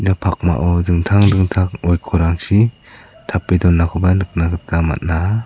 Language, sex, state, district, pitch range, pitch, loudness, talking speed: Garo, male, Meghalaya, South Garo Hills, 85-100 Hz, 90 Hz, -16 LUFS, 100 wpm